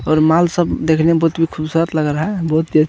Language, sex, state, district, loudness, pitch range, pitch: Hindi, male, Bihar, Supaul, -16 LUFS, 155-165 Hz, 160 Hz